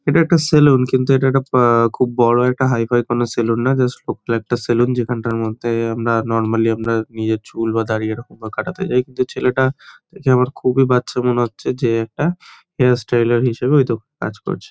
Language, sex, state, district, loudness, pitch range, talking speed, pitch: Bengali, male, West Bengal, Kolkata, -17 LUFS, 115-130 Hz, 205 wpm, 120 Hz